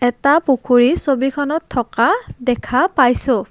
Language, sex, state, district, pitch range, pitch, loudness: Assamese, female, Assam, Kamrup Metropolitan, 250-295 Hz, 270 Hz, -16 LUFS